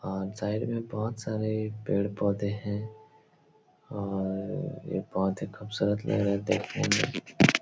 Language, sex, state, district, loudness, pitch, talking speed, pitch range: Hindi, male, Uttar Pradesh, Etah, -30 LUFS, 105 Hz, 135 wpm, 100-110 Hz